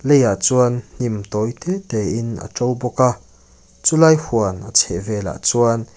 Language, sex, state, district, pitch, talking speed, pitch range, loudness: Mizo, male, Mizoram, Aizawl, 115 Hz, 160 wpm, 100-125 Hz, -18 LUFS